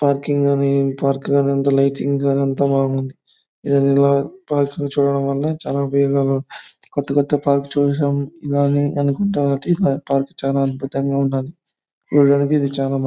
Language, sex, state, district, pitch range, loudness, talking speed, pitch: Telugu, male, Andhra Pradesh, Anantapur, 140-145 Hz, -18 LUFS, 125 wpm, 140 Hz